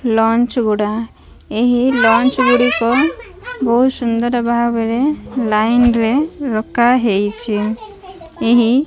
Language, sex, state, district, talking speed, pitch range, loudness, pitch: Odia, female, Odisha, Malkangiri, 175 wpm, 225-260 Hz, -15 LUFS, 240 Hz